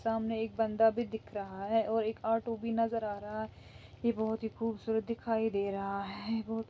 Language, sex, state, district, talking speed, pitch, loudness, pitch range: Hindi, female, Bihar, Araria, 225 wpm, 225 Hz, -34 LUFS, 215-225 Hz